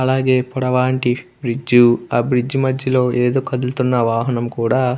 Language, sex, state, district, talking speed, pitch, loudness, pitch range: Telugu, male, Andhra Pradesh, Krishna, 130 wpm, 125 Hz, -17 LUFS, 120-130 Hz